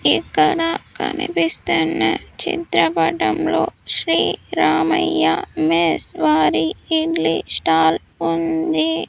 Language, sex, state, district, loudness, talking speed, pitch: Telugu, female, Andhra Pradesh, Sri Satya Sai, -18 LUFS, 65 wpm, 165 Hz